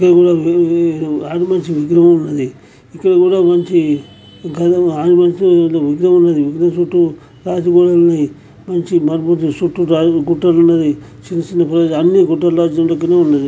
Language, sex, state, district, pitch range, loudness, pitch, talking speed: Telugu, male, Andhra Pradesh, Chittoor, 160-175 Hz, -13 LUFS, 170 Hz, 125 wpm